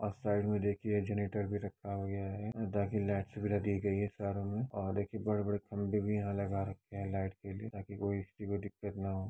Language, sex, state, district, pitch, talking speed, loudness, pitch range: Hindi, male, Uttar Pradesh, Etah, 100 Hz, 220 wpm, -37 LUFS, 100-105 Hz